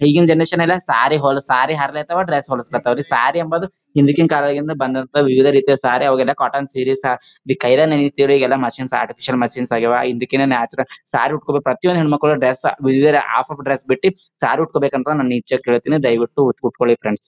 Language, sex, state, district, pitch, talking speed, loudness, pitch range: Kannada, male, Karnataka, Gulbarga, 135 Hz, 155 wpm, -16 LUFS, 130-150 Hz